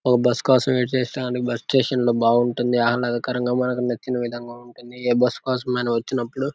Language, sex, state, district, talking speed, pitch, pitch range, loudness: Telugu, male, Andhra Pradesh, Guntur, 185 wpm, 125 Hz, 120-125 Hz, -21 LUFS